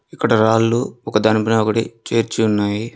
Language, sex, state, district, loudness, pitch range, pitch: Telugu, male, Telangana, Mahabubabad, -17 LUFS, 110-115 Hz, 110 Hz